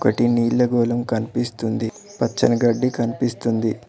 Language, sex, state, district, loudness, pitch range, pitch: Telugu, male, Telangana, Mahabubabad, -21 LUFS, 115-120 Hz, 120 Hz